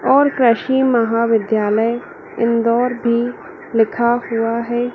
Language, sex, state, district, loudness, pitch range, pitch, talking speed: Hindi, female, Madhya Pradesh, Dhar, -17 LUFS, 230-245 Hz, 235 Hz, 95 wpm